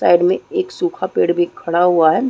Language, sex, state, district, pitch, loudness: Hindi, female, Chhattisgarh, Raigarh, 180 Hz, -16 LUFS